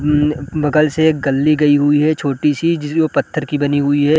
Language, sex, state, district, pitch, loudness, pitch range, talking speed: Hindi, male, Bihar, Gaya, 150 Hz, -15 LUFS, 145-155 Hz, 245 wpm